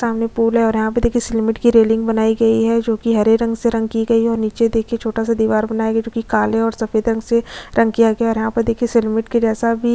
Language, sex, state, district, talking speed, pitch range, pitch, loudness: Hindi, female, Chhattisgarh, Sukma, 295 wpm, 225-230 Hz, 225 Hz, -17 LUFS